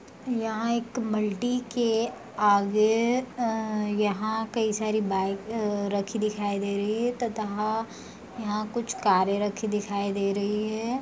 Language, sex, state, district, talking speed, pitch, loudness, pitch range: Hindi, female, Bihar, Purnia, 135 wpm, 215 Hz, -27 LUFS, 205-230 Hz